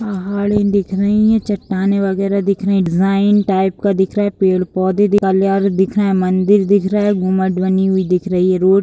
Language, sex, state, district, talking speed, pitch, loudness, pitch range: Hindi, female, Uttar Pradesh, Varanasi, 215 wpm, 195 Hz, -15 LUFS, 190-200 Hz